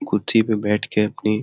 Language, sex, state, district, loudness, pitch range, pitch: Hindi, male, Bihar, Jamui, -20 LUFS, 105-115 Hz, 105 Hz